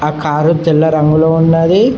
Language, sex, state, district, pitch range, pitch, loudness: Telugu, male, Telangana, Mahabubabad, 155-165 Hz, 160 Hz, -11 LUFS